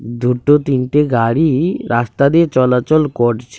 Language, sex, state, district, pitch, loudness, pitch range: Bengali, male, Tripura, West Tripura, 125 Hz, -14 LUFS, 120-145 Hz